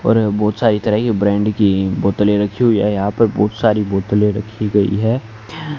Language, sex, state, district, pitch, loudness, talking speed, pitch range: Hindi, male, Haryana, Charkhi Dadri, 105 Hz, -16 LUFS, 195 wpm, 100-110 Hz